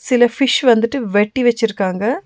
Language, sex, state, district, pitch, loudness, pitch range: Tamil, female, Tamil Nadu, Nilgiris, 240 Hz, -15 LUFS, 225-255 Hz